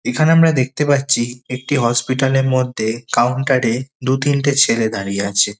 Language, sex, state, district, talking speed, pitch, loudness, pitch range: Bengali, male, West Bengal, Kolkata, 150 wpm, 130 Hz, -16 LUFS, 115-140 Hz